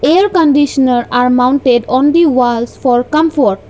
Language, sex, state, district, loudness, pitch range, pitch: English, female, Assam, Kamrup Metropolitan, -11 LUFS, 245-295 Hz, 260 Hz